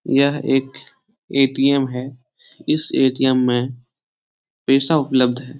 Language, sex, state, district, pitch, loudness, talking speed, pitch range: Hindi, male, Bihar, Lakhisarai, 135 Hz, -18 LUFS, 120 wpm, 130-140 Hz